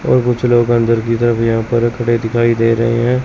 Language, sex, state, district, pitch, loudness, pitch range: Hindi, male, Chandigarh, Chandigarh, 115 Hz, -14 LUFS, 115-120 Hz